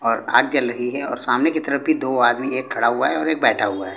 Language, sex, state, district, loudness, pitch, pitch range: Hindi, male, Punjab, Pathankot, -19 LUFS, 125 Hz, 115-135 Hz